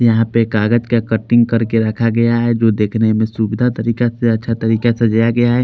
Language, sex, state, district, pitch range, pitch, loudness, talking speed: Hindi, male, Haryana, Charkhi Dadri, 110-120 Hz, 115 Hz, -15 LUFS, 235 wpm